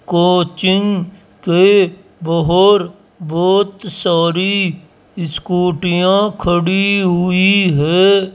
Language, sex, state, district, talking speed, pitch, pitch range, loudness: Hindi, male, Rajasthan, Jaipur, 65 wpm, 180 Hz, 175-195 Hz, -14 LUFS